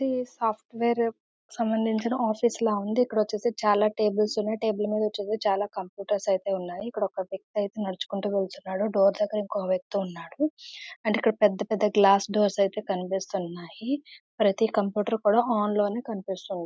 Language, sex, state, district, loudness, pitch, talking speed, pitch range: Telugu, female, Andhra Pradesh, Visakhapatnam, -27 LUFS, 210 Hz, 150 wpm, 200-225 Hz